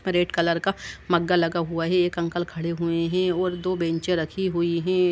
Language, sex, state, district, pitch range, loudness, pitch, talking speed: Hindi, male, Uttar Pradesh, Jalaun, 170-180 Hz, -24 LUFS, 175 Hz, 210 wpm